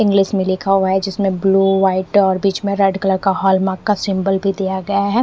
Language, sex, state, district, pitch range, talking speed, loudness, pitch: Hindi, female, Haryana, Rohtak, 190-195 Hz, 240 wpm, -16 LUFS, 195 Hz